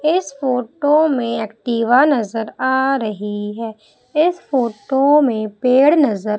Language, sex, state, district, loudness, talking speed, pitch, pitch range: Hindi, female, Madhya Pradesh, Umaria, -17 LUFS, 120 wpm, 250 Hz, 220-285 Hz